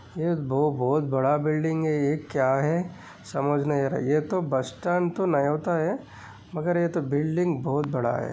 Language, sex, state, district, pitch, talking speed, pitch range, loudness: Hindi, male, Maharashtra, Aurangabad, 150 Hz, 195 wpm, 135-170 Hz, -26 LUFS